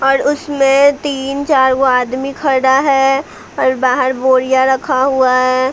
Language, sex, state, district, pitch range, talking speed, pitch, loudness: Hindi, female, Bihar, Patna, 260-275 Hz, 145 wpm, 265 Hz, -13 LUFS